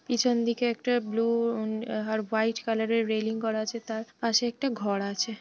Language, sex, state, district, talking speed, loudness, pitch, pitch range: Bengali, male, West Bengal, Jhargram, 180 wpm, -28 LUFS, 225 Hz, 220-235 Hz